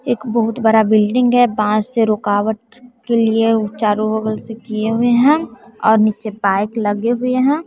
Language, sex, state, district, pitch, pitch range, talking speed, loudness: Hindi, female, Bihar, West Champaran, 225 Hz, 215-240 Hz, 170 wpm, -16 LUFS